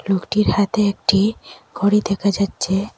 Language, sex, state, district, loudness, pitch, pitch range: Bengali, female, Assam, Hailakandi, -18 LUFS, 200 Hz, 195-210 Hz